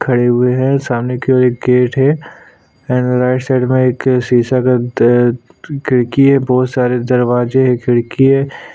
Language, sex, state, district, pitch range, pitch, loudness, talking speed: Hindi, male, Chhattisgarh, Sukma, 125-130 Hz, 125 Hz, -13 LUFS, 180 wpm